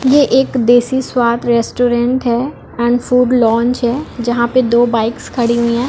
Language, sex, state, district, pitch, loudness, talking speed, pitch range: Hindi, female, Chhattisgarh, Balrampur, 240 Hz, -14 LUFS, 175 wpm, 235-250 Hz